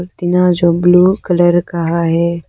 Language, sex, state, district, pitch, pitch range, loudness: Hindi, female, Arunachal Pradesh, Lower Dibang Valley, 175 Hz, 170-180 Hz, -12 LUFS